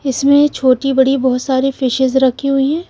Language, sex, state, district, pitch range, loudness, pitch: Hindi, female, Punjab, Fazilka, 260-275 Hz, -14 LUFS, 270 Hz